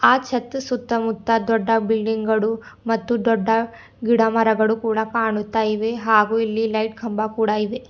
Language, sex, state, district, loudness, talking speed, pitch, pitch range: Kannada, female, Karnataka, Bidar, -20 LUFS, 135 wpm, 225 Hz, 220-230 Hz